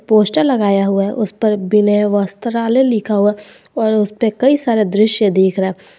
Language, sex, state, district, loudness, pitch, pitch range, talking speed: Hindi, male, Jharkhand, Garhwa, -15 LUFS, 210 Hz, 200-225 Hz, 190 wpm